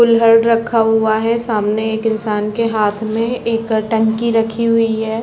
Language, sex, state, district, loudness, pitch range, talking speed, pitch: Hindi, female, Chhattisgarh, Rajnandgaon, -15 LUFS, 220-230 Hz, 170 wpm, 225 Hz